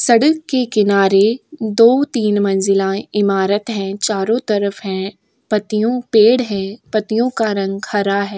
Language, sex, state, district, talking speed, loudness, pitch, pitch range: Hindi, female, Maharashtra, Aurangabad, 135 wpm, -16 LUFS, 210 Hz, 195-230 Hz